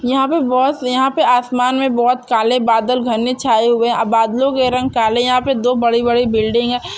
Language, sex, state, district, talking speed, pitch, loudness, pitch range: Hindi, female, Chhattisgarh, Bastar, 205 wpm, 245 Hz, -15 LUFS, 235-255 Hz